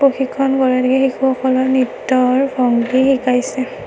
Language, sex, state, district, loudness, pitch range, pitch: Assamese, female, Assam, Kamrup Metropolitan, -15 LUFS, 255-270 Hz, 260 Hz